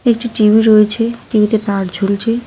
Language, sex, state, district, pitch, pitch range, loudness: Bengali, female, West Bengal, Cooch Behar, 220 Hz, 210-230 Hz, -13 LUFS